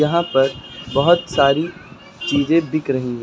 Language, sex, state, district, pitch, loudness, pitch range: Hindi, male, Uttar Pradesh, Lucknow, 145 Hz, -18 LUFS, 135-170 Hz